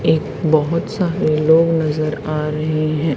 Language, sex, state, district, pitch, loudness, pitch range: Hindi, female, Haryana, Charkhi Dadri, 155 Hz, -17 LUFS, 155-160 Hz